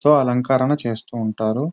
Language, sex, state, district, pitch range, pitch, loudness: Telugu, male, Telangana, Nalgonda, 115-145 Hz, 125 Hz, -20 LUFS